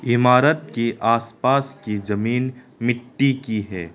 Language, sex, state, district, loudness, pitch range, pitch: Hindi, male, Arunachal Pradesh, Lower Dibang Valley, -21 LUFS, 115-130 Hz, 120 Hz